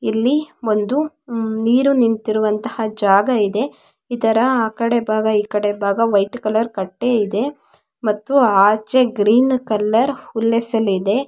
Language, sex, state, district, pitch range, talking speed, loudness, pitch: Kannada, female, Karnataka, Mysore, 210-245 Hz, 110 wpm, -17 LUFS, 225 Hz